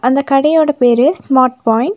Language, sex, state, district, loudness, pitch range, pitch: Tamil, female, Tamil Nadu, Nilgiris, -12 LUFS, 250-295 Hz, 265 Hz